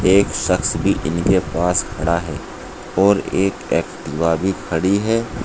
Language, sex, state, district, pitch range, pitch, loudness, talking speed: Hindi, male, Uttar Pradesh, Saharanpur, 85-95 Hz, 95 Hz, -19 LUFS, 145 wpm